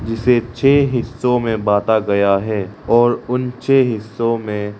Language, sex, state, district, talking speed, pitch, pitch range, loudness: Hindi, male, Arunachal Pradesh, Lower Dibang Valley, 160 wpm, 115 Hz, 105-125 Hz, -17 LUFS